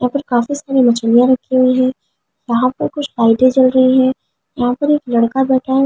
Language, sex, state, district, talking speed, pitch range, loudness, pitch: Hindi, female, Delhi, New Delhi, 205 wpm, 245-265 Hz, -14 LUFS, 255 Hz